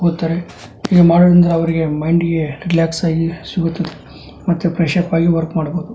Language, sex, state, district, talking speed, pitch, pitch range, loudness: Kannada, male, Karnataka, Dharwad, 140 wpm, 170 Hz, 165-175 Hz, -15 LUFS